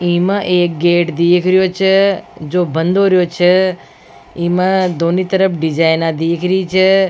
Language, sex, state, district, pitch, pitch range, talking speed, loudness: Rajasthani, female, Rajasthan, Nagaur, 180 Hz, 170-190 Hz, 160 wpm, -14 LUFS